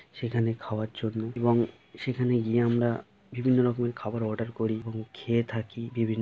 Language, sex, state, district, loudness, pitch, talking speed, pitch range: Bengali, male, West Bengal, Kolkata, -29 LUFS, 115 Hz, 165 wpm, 110-120 Hz